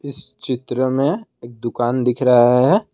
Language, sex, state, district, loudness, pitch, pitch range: Hindi, male, Assam, Kamrup Metropolitan, -17 LUFS, 130 Hz, 120-145 Hz